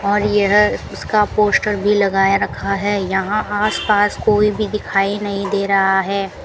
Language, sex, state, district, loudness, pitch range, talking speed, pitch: Hindi, female, Rajasthan, Bikaner, -17 LUFS, 195-210 Hz, 165 wpm, 205 Hz